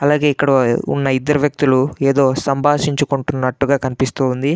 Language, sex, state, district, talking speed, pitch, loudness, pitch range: Telugu, male, Andhra Pradesh, Anantapur, 120 wpm, 140 Hz, -16 LUFS, 130-145 Hz